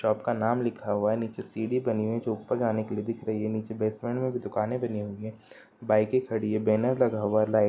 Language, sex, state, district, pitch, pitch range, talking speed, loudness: Hindi, male, Bihar, Sitamarhi, 110 Hz, 110-120 Hz, 280 wpm, -28 LUFS